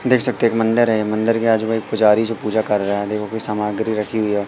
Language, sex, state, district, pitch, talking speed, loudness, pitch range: Hindi, male, Madhya Pradesh, Katni, 110 Hz, 280 wpm, -18 LUFS, 105-115 Hz